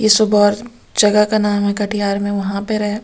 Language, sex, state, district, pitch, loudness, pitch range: Hindi, female, Bihar, Katihar, 210 Hz, -16 LUFS, 205-215 Hz